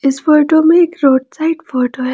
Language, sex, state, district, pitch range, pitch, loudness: Hindi, female, Jharkhand, Ranchi, 260-320 Hz, 295 Hz, -12 LUFS